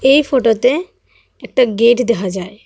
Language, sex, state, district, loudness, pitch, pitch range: Bengali, female, Assam, Hailakandi, -14 LUFS, 240 Hz, 220-265 Hz